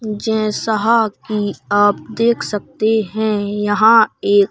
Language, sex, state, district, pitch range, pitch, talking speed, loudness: Hindi, male, Madhya Pradesh, Bhopal, 205-220 Hz, 215 Hz, 105 wpm, -16 LUFS